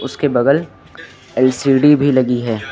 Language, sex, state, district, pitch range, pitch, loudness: Hindi, male, Uttar Pradesh, Lucknow, 125-140 Hz, 130 Hz, -14 LUFS